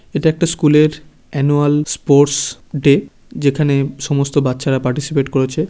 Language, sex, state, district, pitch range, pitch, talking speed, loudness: Bengali, male, West Bengal, Kolkata, 140-150 Hz, 145 Hz, 145 wpm, -15 LUFS